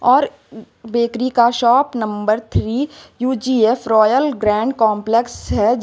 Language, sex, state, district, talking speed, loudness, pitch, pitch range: Hindi, female, Uttar Pradesh, Lucknow, 115 wpm, -17 LUFS, 235 Hz, 220-255 Hz